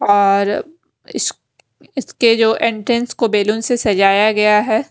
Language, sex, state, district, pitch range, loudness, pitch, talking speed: Hindi, female, Haryana, Rohtak, 205-240 Hz, -15 LUFS, 220 Hz, 135 wpm